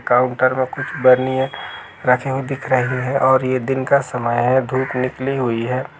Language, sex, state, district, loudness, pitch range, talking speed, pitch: Hindi, male, Uttar Pradesh, Jalaun, -18 LUFS, 125-130 Hz, 180 wpm, 130 Hz